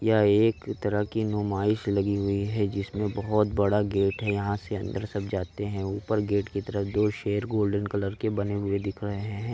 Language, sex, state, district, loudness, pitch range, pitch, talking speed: Hindi, male, Uttar Pradesh, Varanasi, -27 LUFS, 100-105 Hz, 100 Hz, 205 wpm